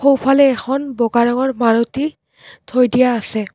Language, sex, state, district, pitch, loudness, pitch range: Assamese, female, Assam, Kamrup Metropolitan, 255 Hz, -16 LUFS, 235-270 Hz